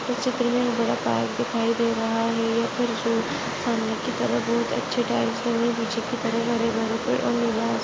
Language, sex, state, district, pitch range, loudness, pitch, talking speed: Hindi, female, Chhattisgarh, Sarguja, 230-240 Hz, -24 LUFS, 230 Hz, 170 wpm